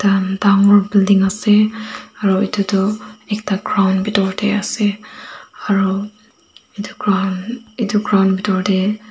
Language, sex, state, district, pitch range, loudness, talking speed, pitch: Nagamese, female, Nagaland, Dimapur, 195-210 Hz, -16 LUFS, 120 wpm, 205 Hz